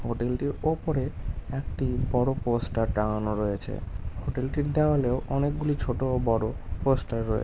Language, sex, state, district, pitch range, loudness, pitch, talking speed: Bengali, male, West Bengal, Malda, 110-135 Hz, -28 LUFS, 125 Hz, 155 wpm